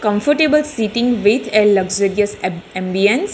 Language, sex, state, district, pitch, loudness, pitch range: English, female, Telangana, Hyderabad, 210 Hz, -16 LUFS, 200-240 Hz